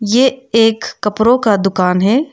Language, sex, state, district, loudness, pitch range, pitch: Hindi, female, Arunachal Pradesh, Lower Dibang Valley, -13 LUFS, 210-255 Hz, 225 Hz